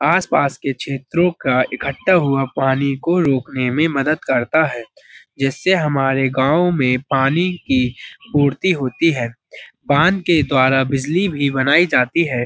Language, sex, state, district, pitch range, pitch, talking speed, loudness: Hindi, male, Uttar Pradesh, Budaun, 130-165 Hz, 140 Hz, 145 wpm, -17 LUFS